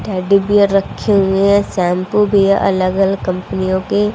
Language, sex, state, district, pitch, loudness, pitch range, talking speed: Hindi, female, Haryana, Jhajjar, 195 Hz, -14 LUFS, 185-200 Hz, 160 wpm